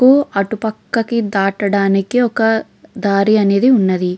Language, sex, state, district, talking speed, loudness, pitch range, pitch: Telugu, female, Andhra Pradesh, Krishna, 100 wpm, -15 LUFS, 200-235 Hz, 215 Hz